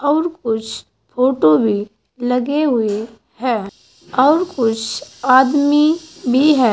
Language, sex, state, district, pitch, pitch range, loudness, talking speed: Hindi, female, Uttar Pradesh, Saharanpur, 250 Hz, 225-290 Hz, -16 LUFS, 105 wpm